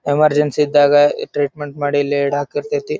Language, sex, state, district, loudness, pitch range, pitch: Kannada, male, Karnataka, Dharwad, -16 LUFS, 145-150 Hz, 145 Hz